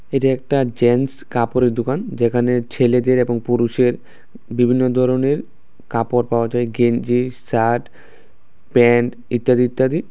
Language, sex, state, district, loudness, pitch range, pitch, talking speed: Bengali, male, Tripura, West Tripura, -18 LUFS, 120-130 Hz, 125 Hz, 115 wpm